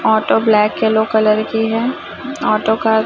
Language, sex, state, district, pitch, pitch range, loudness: Hindi, female, Chhattisgarh, Raipur, 220 Hz, 215-225 Hz, -15 LUFS